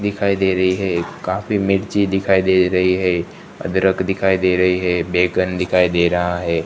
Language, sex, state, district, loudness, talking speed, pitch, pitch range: Hindi, male, Gujarat, Gandhinagar, -17 LUFS, 180 wpm, 95 Hz, 90-95 Hz